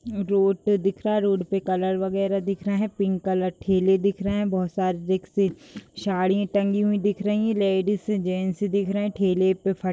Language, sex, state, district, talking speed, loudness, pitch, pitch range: Hindi, female, Uttar Pradesh, Budaun, 245 wpm, -24 LUFS, 195 Hz, 190-205 Hz